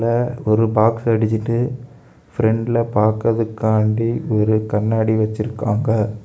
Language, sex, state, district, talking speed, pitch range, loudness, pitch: Tamil, male, Tamil Nadu, Kanyakumari, 85 wpm, 110-115 Hz, -18 LUFS, 110 Hz